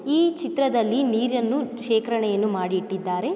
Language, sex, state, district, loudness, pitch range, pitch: Kannada, female, Karnataka, Mysore, -23 LUFS, 210-275 Hz, 235 Hz